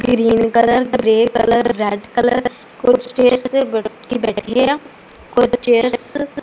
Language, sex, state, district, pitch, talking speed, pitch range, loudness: Punjabi, female, Punjab, Kapurthala, 245 Hz, 140 wpm, 230-250 Hz, -16 LUFS